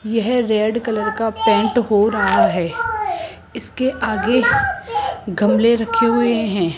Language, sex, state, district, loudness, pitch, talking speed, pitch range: Hindi, male, Rajasthan, Jaipur, -17 LUFS, 230 Hz, 125 wpm, 215-255 Hz